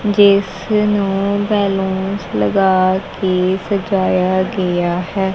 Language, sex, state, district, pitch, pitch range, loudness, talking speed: Punjabi, female, Punjab, Kapurthala, 190 Hz, 185-200 Hz, -16 LUFS, 65 wpm